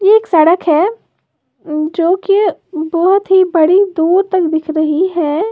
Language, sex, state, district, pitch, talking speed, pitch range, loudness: Hindi, female, Uttar Pradesh, Lalitpur, 345 Hz, 150 wpm, 320-380 Hz, -13 LUFS